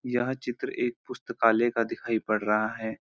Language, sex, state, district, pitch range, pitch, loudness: Hindi, male, Uttarakhand, Uttarkashi, 110-120 Hz, 115 Hz, -28 LUFS